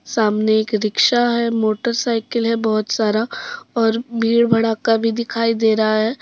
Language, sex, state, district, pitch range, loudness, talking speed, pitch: Hindi, female, Jharkhand, Deoghar, 220-235 Hz, -18 LUFS, 155 wpm, 225 Hz